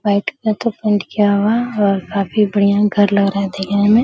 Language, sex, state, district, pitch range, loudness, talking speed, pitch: Hindi, female, Bihar, Araria, 200-215 Hz, -16 LUFS, 220 wpm, 205 Hz